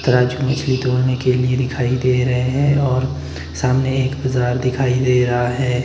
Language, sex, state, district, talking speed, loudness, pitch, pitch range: Hindi, male, Himachal Pradesh, Shimla, 145 wpm, -18 LUFS, 125 Hz, 125-130 Hz